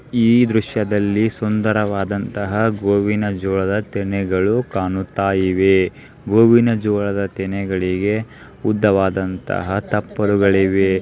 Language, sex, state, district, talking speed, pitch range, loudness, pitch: Kannada, male, Karnataka, Belgaum, 70 wpm, 95-110 Hz, -18 LUFS, 100 Hz